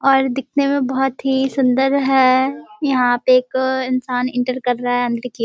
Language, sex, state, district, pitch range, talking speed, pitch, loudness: Hindi, female, Bihar, Muzaffarpur, 250-270 Hz, 200 wpm, 260 Hz, -17 LUFS